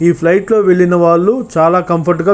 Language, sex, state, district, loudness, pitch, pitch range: Telugu, male, Andhra Pradesh, Chittoor, -11 LUFS, 175 Hz, 170-195 Hz